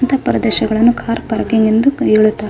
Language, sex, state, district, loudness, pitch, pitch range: Kannada, female, Karnataka, Raichur, -13 LUFS, 225 Hz, 215-255 Hz